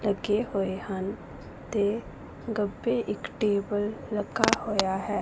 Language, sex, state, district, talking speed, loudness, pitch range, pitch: Punjabi, female, Punjab, Pathankot, 115 wpm, -29 LUFS, 200-215 Hz, 205 Hz